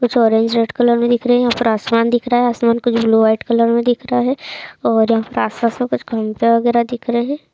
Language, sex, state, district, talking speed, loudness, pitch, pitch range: Hindi, female, Chhattisgarh, Raigarh, 260 wpm, -16 LUFS, 235 Hz, 230-245 Hz